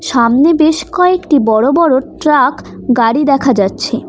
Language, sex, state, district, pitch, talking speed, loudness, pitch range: Bengali, female, West Bengal, Cooch Behar, 275 Hz, 115 wpm, -11 LUFS, 235-315 Hz